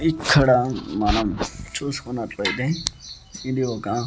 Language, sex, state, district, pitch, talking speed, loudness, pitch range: Telugu, male, Andhra Pradesh, Annamaya, 120 Hz, 75 wpm, -22 LUFS, 105-135 Hz